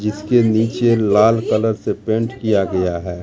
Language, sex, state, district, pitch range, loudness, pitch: Hindi, male, Bihar, Katihar, 105-115 Hz, -17 LUFS, 110 Hz